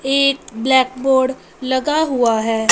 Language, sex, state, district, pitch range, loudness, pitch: Hindi, female, Punjab, Fazilka, 250-270 Hz, -17 LUFS, 260 Hz